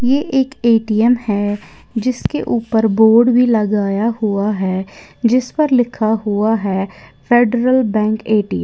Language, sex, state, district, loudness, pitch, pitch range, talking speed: Hindi, female, Uttar Pradesh, Lalitpur, -15 LUFS, 225 Hz, 210-245 Hz, 140 wpm